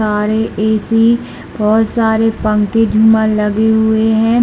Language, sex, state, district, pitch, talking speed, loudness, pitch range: Hindi, female, Chhattisgarh, Bilaspur, 220 Hz, 120 wpm, -13 LUFS, 215-225 Hz